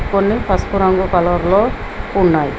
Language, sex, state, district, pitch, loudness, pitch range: Telugu, female, Telangana, Mahabubabad, 190 Hz, -15 LUFS, 175-200 Hz